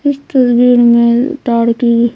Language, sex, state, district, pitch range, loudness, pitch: Hindi, female, Bihar, Patna, 235-260 Hz, -10 LUFS, 240 Hz